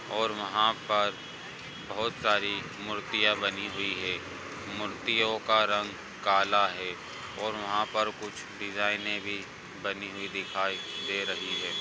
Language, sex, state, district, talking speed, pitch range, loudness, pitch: Hindi, male, Maharashtra, Pune, 130 wpm, 95-105 Hz, -30 LUFS, 100 Hz